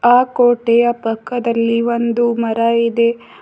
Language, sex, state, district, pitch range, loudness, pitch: Kannada, female, Karnataka, Bidar, 230-240 Hz, -15 LUFS, 235 Hz